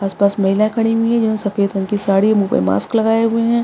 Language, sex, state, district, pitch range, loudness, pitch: Hindi, female, Maharashtra, Aurangabad, 200-225 Hz, -16 LUFS, 215 Hz